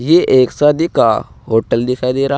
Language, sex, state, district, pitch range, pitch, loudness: Hindi, male, Uttar Pradesh, Saharanpur, 125-150 Hz, 130 Hz, -14 LUFS